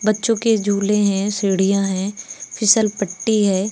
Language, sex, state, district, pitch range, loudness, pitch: Hindi, female, Uttar Pradesh, Lucknow, 195-215 Hz, -18 LUFS, 205 Hz